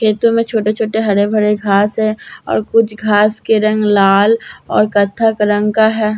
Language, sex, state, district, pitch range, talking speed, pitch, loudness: Hindi, female, Bihar, Katihar, 210-220 Hz, 175 wpm, 215 Hz, -13 LUFS